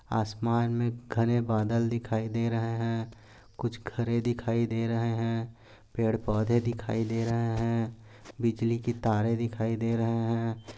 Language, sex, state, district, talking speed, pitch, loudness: Hindi, male, Maharashtra, Aurangabad, 150 wpm, 115 Hz, -30 LUFS